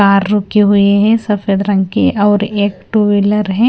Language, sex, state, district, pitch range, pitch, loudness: Hindi, female, Punjab, Fazilka, 200-210 Hz, 205 Hz, -12 LUFS